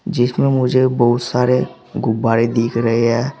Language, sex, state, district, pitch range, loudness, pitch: Hindi, male, Uttar Pradesh, Saharanpur, 115-130 Hz, -16 LUFS, 120 Hz